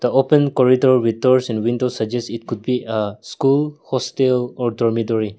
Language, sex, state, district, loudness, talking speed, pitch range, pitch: English, male, Nagaland, Kohima, -18 LUFS, 180 wpm, 115-130 Hz, 125 Hz